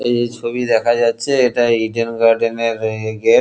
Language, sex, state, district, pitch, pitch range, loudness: Bengali, male, West Bengal, Kolkata, 115 Hz, 115-120 Hz, -16 LUFS